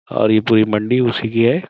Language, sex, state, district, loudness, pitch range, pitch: Hindi, male, Uttar Pradesh, Budaun, -16 LUFS, 110-120 Hz, 115 Hz